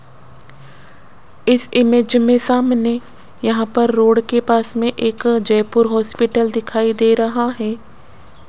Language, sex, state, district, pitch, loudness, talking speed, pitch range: Hindi, female, Rajasthan, Jaipur, 230 Hz, -16 LUFS, 120 wpm, 225-240 Hz